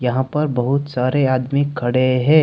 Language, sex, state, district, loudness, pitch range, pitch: Hindi, male, Jharkhand, Deoghar, -18 LUFS, 125-140 Hz, 130 Hz